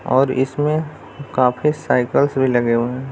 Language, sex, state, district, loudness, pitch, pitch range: Hindi, male, Bihar, Jamui, -18 LUFS, 130 Hz, 125-145 Hz